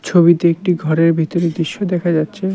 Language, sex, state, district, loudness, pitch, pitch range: Bengali, male, West Bengal, Cooch Behar, -16 LUFS, 170 Hz, 165-180 Hz